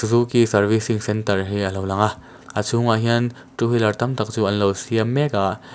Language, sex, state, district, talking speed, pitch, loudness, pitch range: Mizo, male, Mizoram, Aizawl, 220 wpm, 110 Hz, -20 LUFS, 100-120 Hz